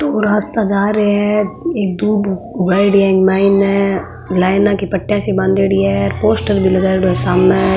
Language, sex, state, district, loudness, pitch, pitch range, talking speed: Marwari, female, Rajasthan, Nagaur, -14 LUFS, 195 Hz, 185-205 Hz, 175 wpm